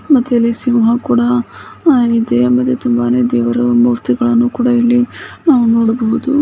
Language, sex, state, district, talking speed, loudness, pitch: Kannada, female, Karnataka, Bijapur, 120 wpm, -13 LUFS, 230 Hz